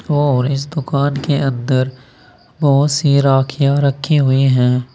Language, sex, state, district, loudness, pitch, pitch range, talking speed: Hindi, male, Uttar Pradesh, Saharanpur, -15 LUFS, 140 Hz, 130-145 Hz, 135 wpm